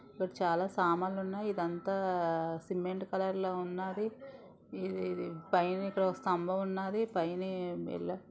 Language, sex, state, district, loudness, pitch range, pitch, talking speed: Telugu, female, Andhra Pradesh, Visakhapatnam, -35 LUFS, 170-190 Hz, 185 Hz, 100 wpm